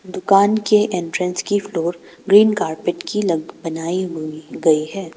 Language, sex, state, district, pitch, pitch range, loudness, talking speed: Hindi, female, Arunachal Pradesh, Papum Pare, 180 Hz, 165-200 Hz, -18 LUFS, 150 wpm